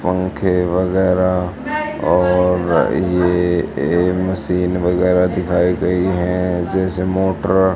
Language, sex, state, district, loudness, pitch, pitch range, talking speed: Hindi, female, Haryana, Charkhi Dadri, -17 LUFS, 90 Hz, 90-95 Hz, 95 wpm